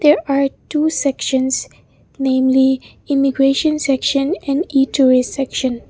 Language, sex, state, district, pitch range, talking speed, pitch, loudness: English, female, Mizoram, Aizawl, 265-285 Hz, 110 wpm, 275 Hz, -16 LUFS